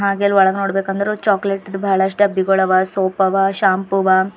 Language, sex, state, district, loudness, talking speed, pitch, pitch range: Kannada, female, Karnataka, Bidar, -16 LUFS, 150 wpm, 195 Hz, 190-200 Hz